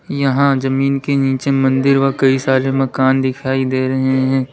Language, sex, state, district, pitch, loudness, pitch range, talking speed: Hindi, male, Uttar Pradesh, Lalitpur, 135 Hz, -15 LUFS, 130-135 Hz, 170 wpm